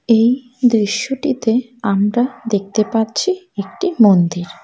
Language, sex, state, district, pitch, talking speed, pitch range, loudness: Bengali, female, West Bengal, Alipurduar, 230 Hz, 90 wpm, 205-250 Hz, -16 LUFS